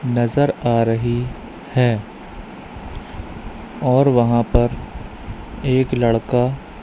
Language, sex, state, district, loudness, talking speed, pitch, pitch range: Hindi, female, Madhya Pradesh, Katni, -18 LUFS, 80 wpm, 120 Hz, 120-125 Hz